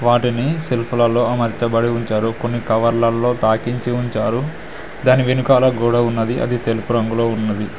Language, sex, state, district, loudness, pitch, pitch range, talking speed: Telugu, male, Telangana, Mahabubabad, -18 LUFS, 120 Hz, 115-120 Hz, 130 wpm